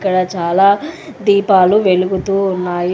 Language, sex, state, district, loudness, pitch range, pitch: Telugu, female, Telangana, Hyderabad, -14 LUFS, 185-200 Hz, 190 Hz